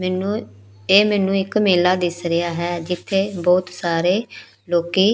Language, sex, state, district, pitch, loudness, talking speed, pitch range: Punjabi, female, Punjab, Pathankot, 180 Hz, -19 LUFS, 140 wpm, 175-195 Hz